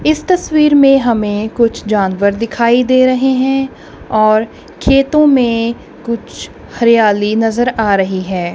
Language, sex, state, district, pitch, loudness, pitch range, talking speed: Hindi, female, Punjab, Kapurthala, 235 Hz, -12 LUFS, 215-265 Hz, 135 wpm